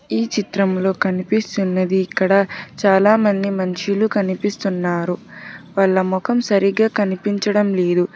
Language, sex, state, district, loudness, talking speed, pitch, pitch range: Telugu, female, Telangana, Hyderabad, -18 LUFS, 95 wpm, 195 Hz, 185-205 Hz